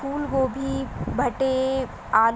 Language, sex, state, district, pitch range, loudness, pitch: Hindi, female, Maharashtra, Aurangabad, 260-270 Hz, -25 LUFS, 265 Hz